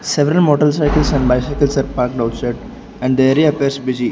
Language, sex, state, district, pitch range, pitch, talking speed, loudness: English, male, Arunachal Pradesh, Lower Dibang Valley, 125-145 Hz, 140 Hz, 175 wpm, -15 LUFS